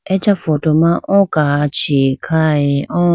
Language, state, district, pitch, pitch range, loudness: Idu Mishmi, Arunachal Pradesh, Lower Dibang Valley, 155 Hz, 145-175 Hz, -14 LUFS